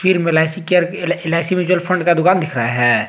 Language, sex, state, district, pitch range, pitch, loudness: Hindi, male, Jharkhand, Garhwa, 165-185 Hz, 175 Hz, -16 LUFS